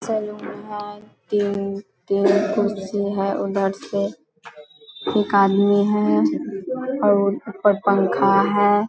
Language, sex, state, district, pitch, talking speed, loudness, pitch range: Hindi, female, Bihar, Vaishali, 200 Hz, 95 wpm, -20 LUFS, 195-210 Hz